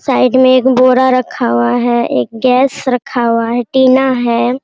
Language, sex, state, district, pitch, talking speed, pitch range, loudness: Hindi, female, Bihar, Araria, 255 Hz, 180 wpm, 240-260 Hz, -11 LUFS